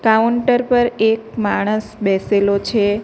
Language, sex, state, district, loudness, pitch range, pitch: Gujarati, female, Gujarat, Navsari, -17 LUFS, 205-230 Hz, 220 Hz